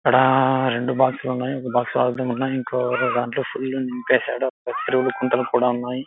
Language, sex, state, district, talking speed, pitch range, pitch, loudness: Telugu, male, Andhra Pradesh, Anantapur, 170 wpm, 125-130 Hz, 130 Hz, -21 LUFS